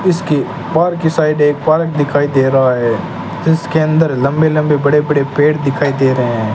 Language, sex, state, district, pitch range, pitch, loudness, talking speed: Hindi, male, Rajasthan, Bikaner, 135-160 Hz, 150 Hz, -13 LUFS, 190 wpm